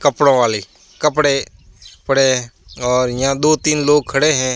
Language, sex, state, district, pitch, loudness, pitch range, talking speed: Hindi, male, Rajasthan, Barmer, 135 Hz, -16 LUFS, 125-145 Hz, 160 wpm